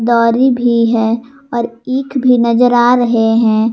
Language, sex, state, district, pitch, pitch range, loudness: Hindi, female, Jharkhand, Garhwa, 240 Hz, 230-250 Hz, -12 LUFS